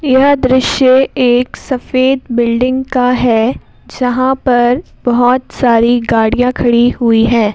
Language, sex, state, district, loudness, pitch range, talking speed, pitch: Hindi, female, Madhya Pradesh, Bhopal, -12 LUFS, 240-260 Hz, 120 wpm, 250 Hz